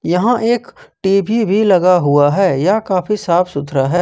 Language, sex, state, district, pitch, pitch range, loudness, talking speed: Hindi, male, Jharkhand, Ranchi, 185 Hz, 170-210 Hz, -14 LUFS, 180 wpm